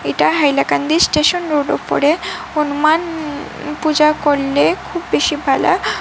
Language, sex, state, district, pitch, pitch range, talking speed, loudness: Bengali, female, Assam, Hailakandi, 300 Hz, 290-325 Hz, 110 wpm, -16 LUFS